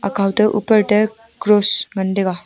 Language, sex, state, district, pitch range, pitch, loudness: Wancho, female, Arunachal Pradesh, Longding, 195-215 Hz, 210 Hz, -16 LUFS